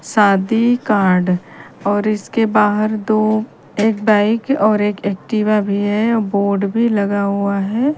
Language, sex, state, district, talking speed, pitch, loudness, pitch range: Hindi, female, Haryana, Charkhi Dadri, 135 wpm, 210 Hz, -16 LUFS, 200-220 Hz